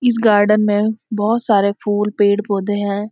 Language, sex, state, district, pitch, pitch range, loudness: Hindi, female, Uttarakhand, Uttarkashi, 210 Hz, 205-215 Hz, -16 LUFS